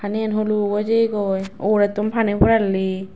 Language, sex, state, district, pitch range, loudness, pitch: Chakma, female, Tripura, West Tripura, 195-215 Hz, -19 LUFS, 210 Hz